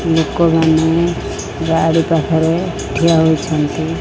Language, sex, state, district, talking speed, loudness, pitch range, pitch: Odia, female, Odisha, Khordha, 75 wpm, -15 LUFS, 160-170 Hz, 165 Hz